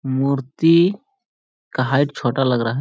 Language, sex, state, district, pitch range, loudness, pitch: Hindi, male, Bihar, Jamui, 130-165 Hz, -18 LUFS, 135 Hz